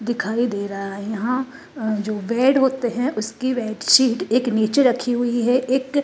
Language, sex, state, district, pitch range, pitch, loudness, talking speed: Hindi, female, Uttar Pradesh, Jalaun, 220-260 Hz, 240 Hz, -20 LUFS, 180 wpm